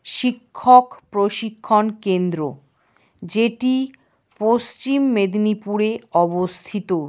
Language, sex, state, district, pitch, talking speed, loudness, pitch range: Bengali, female, West Bengal, Paschim Medinipur, 215 Hz, 60 wpm, -19 LUFS, 185-240 Hz